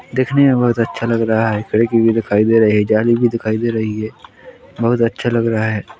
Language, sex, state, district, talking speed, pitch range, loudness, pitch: Hindi, male, Chhattisgarh, Korba, 240 wpm, 110-120 Hz, -15 LUFS, 115 Hz